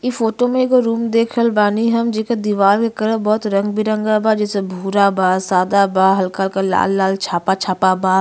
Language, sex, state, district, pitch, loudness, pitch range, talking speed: Bhojpuri, female, Uttar Pradesh, Ghazipur, 205 Hz, -16 LUFS, 190-225 Hz, 220 wpm